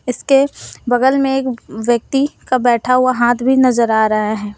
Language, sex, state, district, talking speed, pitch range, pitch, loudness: Hindi, female, Jharkhand, Deoghar, 185 wpm, 235-265 Hz, 250 Hz, -15 LUFS